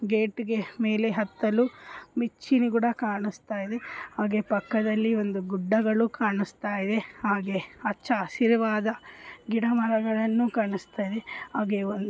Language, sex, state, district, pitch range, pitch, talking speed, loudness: Kannada, female, Karnataka, Bellary, 205-230 Hz, 220 Hz, 115 wpm, -27 LUFS